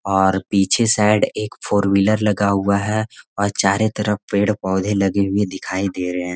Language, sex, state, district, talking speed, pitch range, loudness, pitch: Hindi, male, Bihar, Gaya, 180 wpm, 95-105 Hz, -18 LUFS, 100 Hz